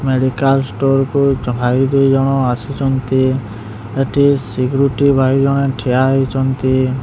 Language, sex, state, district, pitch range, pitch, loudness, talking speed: Odia, male, Odisha, Sambalpur, 130-135 Hz, 135 Hz, -15 LUFS, 100 wpm